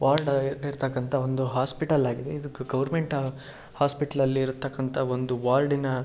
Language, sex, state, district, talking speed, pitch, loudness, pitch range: Kannada, male, Karnataka, Shimoga, 150 wpm, 135 Hz, -27 LUFS, 130-140 Hz